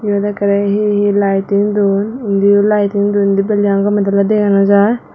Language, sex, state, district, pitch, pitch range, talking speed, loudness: Chakma, female, Tripura, Dhalai, 200 Hz, 200-205 Hz, 210 wpm, -13 LUFS